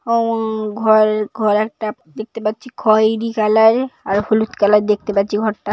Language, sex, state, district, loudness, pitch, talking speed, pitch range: Bengali, female, West Bengal, Paschim Medinipur, -16 LUFS, 215 Hz, 155 wpm, 210-225 Hz